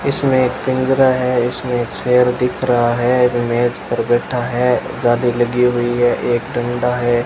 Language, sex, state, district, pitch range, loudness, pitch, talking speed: Hindi, male, Rajasthan, Bikaner, 120-125 Hz, -16 LUFS, 125 Hz, 165 wpm